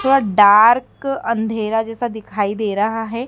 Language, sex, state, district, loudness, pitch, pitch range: Hindi, female, Madhya Pradesh, Dhar, -16 LUFS, 225 Hz, 210-240 Hz